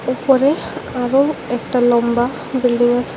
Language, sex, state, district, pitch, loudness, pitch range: Bengali, male, Tripura, West Tripura, 245 Hz, -17 LUFS, 240-265 Hz